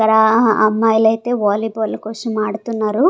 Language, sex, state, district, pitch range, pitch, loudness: Telugu, female, Andhra Pradesh, Sri Satya Sai, 215-225 Hz, 220 Hz, -16 LUFS